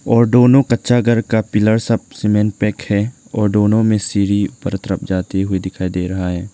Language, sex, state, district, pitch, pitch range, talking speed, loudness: Hindi, male, Arunachal Pradesh, Lower Dibang Valley, 105 Hz, 95-115 Hz, 210 wpm, -16 LUFS